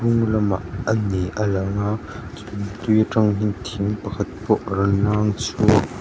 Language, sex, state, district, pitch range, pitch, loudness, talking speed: Mizo, male, Mizoram, Aizawl, 100-110 Hz, 105 Hz, -21 LUFS, 150 wpm